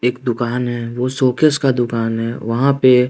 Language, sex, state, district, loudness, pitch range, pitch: Hindi, male, Bihar, West Champaran, -17 LUFS, 120-130 Hz, 125 Hz